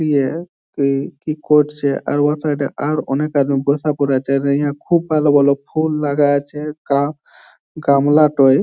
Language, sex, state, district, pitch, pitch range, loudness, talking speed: Bengali, male, West Bengal, Jhargram, 145 Hz, 140-150 Hz, -17 LUFS, 120 wpm